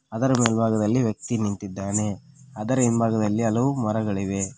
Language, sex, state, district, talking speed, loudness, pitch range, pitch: Kannada, male, Karnataka, Koppal, 105 wpm, -23 LUFS, 105-125 Hz, 110 Hz